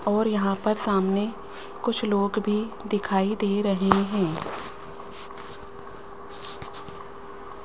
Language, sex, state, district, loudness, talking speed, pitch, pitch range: Hindi, female, Rajasthan, Jaipur, -26 LUFS, 85 wpm, 205 Hz, 195-215 Hz